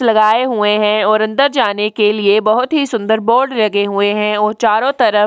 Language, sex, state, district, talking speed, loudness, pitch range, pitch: Hindi, female, Chhattisgarh, Kabirdham, 215 wpm, -13 LUFS, 210-235 Hz, 215 Hz